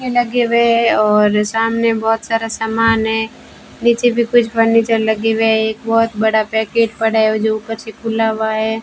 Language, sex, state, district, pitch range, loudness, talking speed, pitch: Hindi, female, Rajasthan, Bikaner, 220-230 Hz, -15 LUFS, 190 wpm, 225 Hz